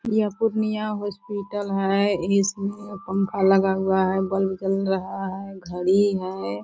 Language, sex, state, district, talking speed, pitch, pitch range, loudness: Hindi, female, Bihar, Purnia, 155 wpm, 195 Hz, 190-205 Hz, -23 LUFS